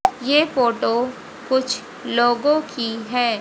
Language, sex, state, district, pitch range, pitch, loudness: Hindi, female, Haryana, Rohtak, 240-285 Hz, 250 Hz, -20 LUFS